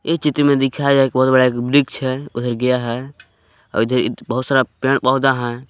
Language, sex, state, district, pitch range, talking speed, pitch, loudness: Hindi, male, Jharkhand, Palamu, 125-135 Hz, 210 wpm, 130 Hz, -17 LUFS